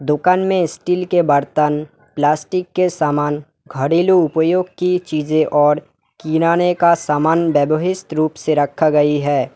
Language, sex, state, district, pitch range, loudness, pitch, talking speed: Hindi, male, West Bengal, Alipurduar, 150-180 Hz, -16 LUFS, 155 Hz, 140 wpm